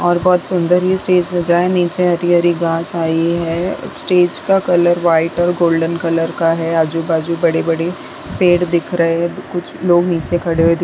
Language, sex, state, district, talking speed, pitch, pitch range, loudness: Hindi, female, Uttarakhand, Tehri Garhwal, 190 wpm, 175 Hz, 165-175 Hz, -15 LUFS